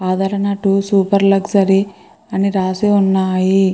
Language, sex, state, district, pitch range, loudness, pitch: Telugu, female, Andhra Pradesh, Krishna, 190-200 Hz, -15 LUFS, 195 Hz